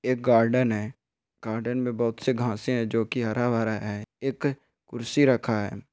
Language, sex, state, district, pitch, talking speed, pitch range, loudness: Hindi, male, Rajasthan, Nagaur, 120 Hz, 190 wpm, 110-125 Hz, -26 LUFS